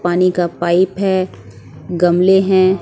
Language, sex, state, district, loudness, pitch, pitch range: Hindi, female, Bihar, West Champaran, -14 LUFS, 180 Hz, 175-185 Hz